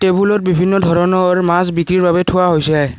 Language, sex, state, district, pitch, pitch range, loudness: Assamese, male, Assam, Kamrup Metropolitan, 180 Hz, 170-185 Hz, -13 LUFS